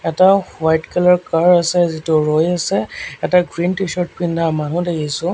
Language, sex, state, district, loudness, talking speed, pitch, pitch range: Assamese, male, Assam, Sonitpur, -16 LUFS, 155 wpm, 170 Hz, 160-180 Hz